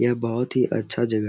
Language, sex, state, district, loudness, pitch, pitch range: Hindi, male, Bihar, Araria, -22 LUFS, 120 Hz, 115-125 Hz